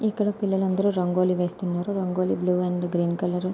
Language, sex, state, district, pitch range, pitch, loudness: Telugu, female, Andhra Pradesh, Anantapur, 180-195 Hz, 180 Hz, -25 LUFS